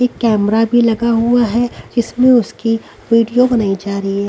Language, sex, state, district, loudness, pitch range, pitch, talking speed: Hindi, female, Haryana, Rohtak, -14 LUFS, 220-240 Hz, 230 Hz, 180 wpm